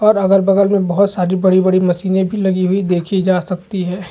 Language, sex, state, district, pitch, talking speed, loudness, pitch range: Hindi, male, Chhattisgarh, Rajnandgaon, 190 Hz, 235 wpm, -15 LUFS, 185-195 Hz